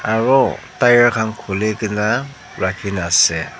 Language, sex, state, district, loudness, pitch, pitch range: Nagamese, male, Nagaland, Dimapur, -16 LUFS, 110 Hz, 100-120 Hz